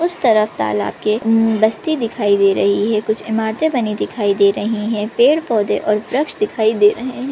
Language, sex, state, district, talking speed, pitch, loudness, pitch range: Hindi, male, Maharashtra, Chandrapur, 205 wpm, 220 Hz, -16 LUFS, 210-230 Hz